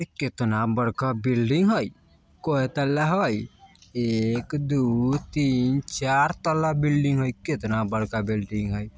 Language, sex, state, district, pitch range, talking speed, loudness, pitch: Bajjika, male, Bihar, Vaishali, 110-145 Hz, 120 wpm, -24 LUFS, 130 Hz